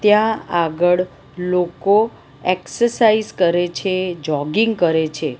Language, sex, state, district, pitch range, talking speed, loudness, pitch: Gujarati, female, Gujarat, Valsad, 170-210 Hz, 100 wpm, -18 LUFS, 180 Hz